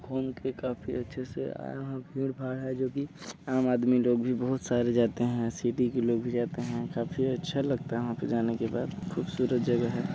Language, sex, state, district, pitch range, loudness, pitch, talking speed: Hindi, male, Chhattisgarh, Balrampur, 120-130 Hz, -30 LUFS, 125 Hz, 215 wpm